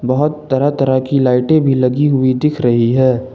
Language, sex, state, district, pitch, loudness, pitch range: Hindi, male, Jharkhand, Ranchi, 130 Hz, -14 LUFS, 130-145 Hz